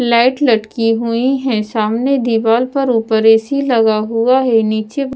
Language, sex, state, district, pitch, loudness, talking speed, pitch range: Hindi, female, Bihar, Patna, 230 Hz, -14 LUFS, 160 wpm, 225-260 Hz